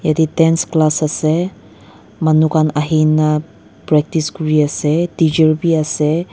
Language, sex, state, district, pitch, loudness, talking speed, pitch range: Nagamese, female, Nagaland, Dimapur, 155 Hz, -15 LUFS, 105 wpm, 155-165 Hz